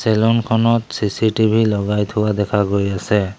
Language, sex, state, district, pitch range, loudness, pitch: Assamese, male, Assam, Sonitpur, 100-110 Hz, -17 LUFS, 105 Hz